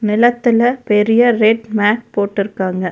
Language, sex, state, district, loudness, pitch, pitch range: Tamil, female, Tamil Nadu, Nilgiris, -14 LUFS, 215 Hz, 205-240 Hz